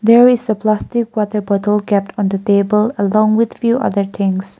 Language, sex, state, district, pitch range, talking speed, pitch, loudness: English, female, Nagaland, Kohima, 200-225 Hz, 195 wpm, 210 Hz, -15 LUFS